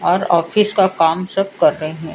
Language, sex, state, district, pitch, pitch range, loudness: Hindi, female, Odisha, Sambalpur, 180 Hz, 165-195 Hz, -16 LUFS